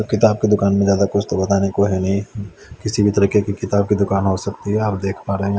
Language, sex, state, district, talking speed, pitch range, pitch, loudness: Hindi, male, Chandigarh, Chandigarh, 280 wpm, 100-105 Hz, 100 Hz, -18 LUFS